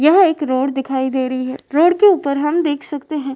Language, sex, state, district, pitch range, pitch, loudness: Hindi, female, Uttar Pradesh, Varanasi, 265-315 Hz, 290 Hz, -16 LUFS